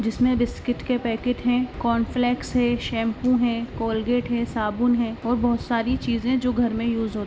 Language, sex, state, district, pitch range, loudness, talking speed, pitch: Hindi, female, Bihar, Saran, 230-245 Hz, -23 LUFS, 180 wpm, 240 Hz